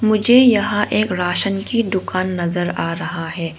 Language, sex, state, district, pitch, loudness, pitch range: Hindi, female, Arunachal Pradesh, Longding, 185 Hz, -17 LUFS, 175-210 Hz